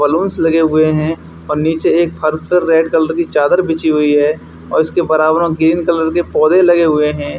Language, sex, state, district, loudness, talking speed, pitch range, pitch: Hindi, male, Haryana, Charkhi Dadri, -13 LUFS, 225 wpm, 155-170 Hz, 160 Hz